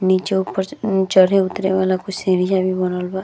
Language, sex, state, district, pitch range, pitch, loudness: Bhojpuri, female, Uttar Pradesh, Deoria, 185-190 Hz, 190 Hz, -18 LUFS